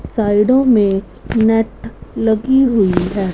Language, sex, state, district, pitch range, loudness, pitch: Hindi, female, Punjab, Fazilka, 200-235 Hz, -15 LUFS, 220 Hz